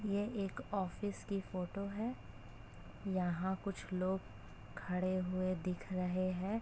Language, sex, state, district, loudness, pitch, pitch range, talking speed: Hindi, female, Uttar Pradesh, Jalaun, -40 LUFS, 185 Hz, 180-200 Hz, 125 wpm